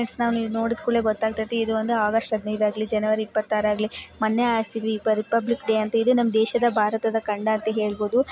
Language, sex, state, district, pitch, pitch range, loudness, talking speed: Kannada, female, Karnataka, Bijapur, 220 Hz, 215-230 Hz, -23 LUFS, 185 wpm